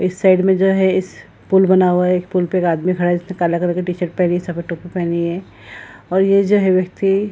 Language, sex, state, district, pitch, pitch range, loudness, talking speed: Hindi, female, Bihar, Jahanabad, 180 Hz, 175-190 Hz, -16 LUFS, 280 wpm